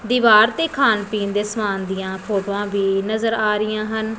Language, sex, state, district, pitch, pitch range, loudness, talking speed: Punjabi, female, Punjab, Pathankot, 215 Hz, 200-220 Hz, -19 LUFS, 185 wpm